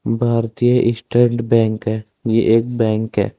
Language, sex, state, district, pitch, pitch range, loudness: Hindi, male, Uttar Pradesh, Saharanpur, 115 Hz, 110-120 Hz, -17 LUFS